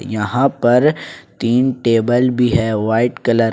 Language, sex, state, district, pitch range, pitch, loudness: Hindi, male, Jharkhand, Ranchi, 115-125 Hz, 120 Hz, -16 LUFS